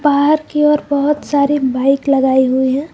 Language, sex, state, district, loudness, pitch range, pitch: Hindi, female, Jharkhand, Garhwa, -14 LUFS, 265-295 Hz, 280 Hz